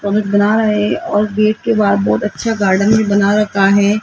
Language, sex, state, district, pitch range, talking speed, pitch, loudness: Hindi, female, Rajasthan, Jaipur, 200-215 Hz, 225 wpm, 205 Hz, -14 LUFS